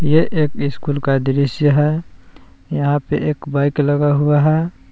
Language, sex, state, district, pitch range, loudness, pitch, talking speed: Hindi, male, Jharkhand, Palamu, 140-150 Hz, -17 LUFS, 145 Hz, 160 wpm